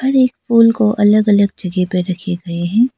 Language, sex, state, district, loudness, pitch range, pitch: Hindi, female, Arunachal Pradesh, Lower Dibang Valley, -14 LUFS, 180-230 Hz, 205 Hz